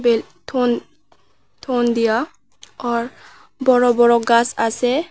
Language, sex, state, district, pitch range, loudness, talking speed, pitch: Bengali, female, Tripura, West Tripura, 235-255 Hz, -18 LUFS, 95 wpm, 240 Hz